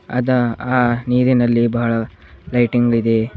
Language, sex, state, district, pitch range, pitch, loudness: Kannada, male, Karnataka, Bidar, 115-125 Hz, 120 Hz, -17 LUFS